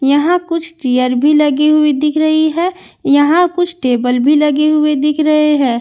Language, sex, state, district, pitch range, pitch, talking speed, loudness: Hindi, female, Bihar, Katihar, 285-315 Hz, 300 Hz, 185 wpm, -12 LUFS